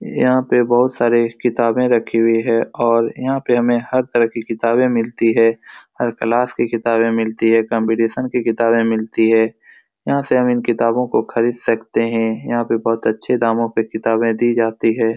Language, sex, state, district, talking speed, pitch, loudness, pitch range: Hindi, male, Bihar, Supaul, 210 wpm, 115 Hz, -17 LUFS, 115-120 Hz